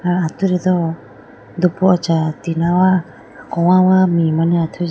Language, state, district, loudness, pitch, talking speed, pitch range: Idu Mishmi, Arunachal Pradesh, Lower Dibang Valley, -16 LUFS, 175 Hz, 120 wpm, 165-185 Hz